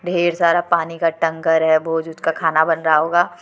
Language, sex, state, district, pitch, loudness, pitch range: Hindi, female, Jharkhand, Deoghar, 165 Hz, -17 LUFS, 160-170 Hz